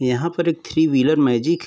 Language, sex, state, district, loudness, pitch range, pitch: Hindi, male, Uttar Pradesh, Varanasi, -19 LUFS, 130-170 Hz, 155 Hz